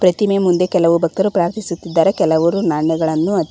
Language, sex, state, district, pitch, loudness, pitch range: Kannada, female, Karnataka, Bangalore, 170 Hz, -16 LUFS, 165-190 Hz